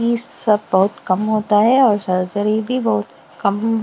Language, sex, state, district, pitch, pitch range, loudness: Hindi, female, Bihar, West Champaran, 210 Hz, 190-225 Hz, -17 LUFS